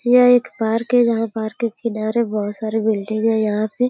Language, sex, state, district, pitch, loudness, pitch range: Hindi, female, Uttar Pradesh, Gorakhpur, 225 Hz, -19 LUFS, 215-235 Hz